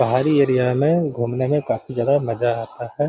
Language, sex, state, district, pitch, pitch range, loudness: Hindi, male, Bihar, Gaya, 130 Hz, 120-145 Hz, -20 LUFS